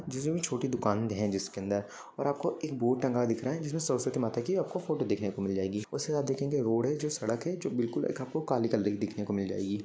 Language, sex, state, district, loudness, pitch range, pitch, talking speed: Hindi, male, Maharashtra, Sindhudurg, -32 LUFS, 105-140 Hz, 120 Hz, 270 wpm